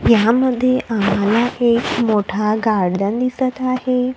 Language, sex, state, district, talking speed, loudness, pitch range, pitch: Marathi, female, Maharashtra, Gondia, 100 wpm, -17 LUFS, 210-255 Hz, 235 Hz